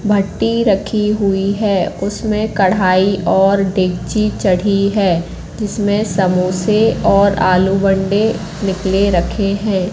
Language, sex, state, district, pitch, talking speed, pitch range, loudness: Hindi, female, Madhya Pradesh, Katni, 195 Hz, 110 wpm, 190-210 Hz, -15 LUFS